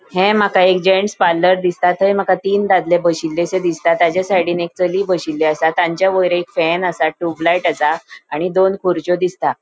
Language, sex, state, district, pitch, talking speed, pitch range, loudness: Konkani, female, Goa, North and South Goa, 180 Hz, 185 wpm, 170-185 Hz, -16 LUFS